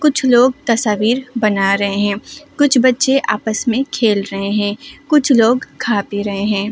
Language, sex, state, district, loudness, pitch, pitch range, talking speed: Hindi, female, Delhi, New Delhi, -15 LUFS, 230 Hz, 205-265 Hz, 170 wpm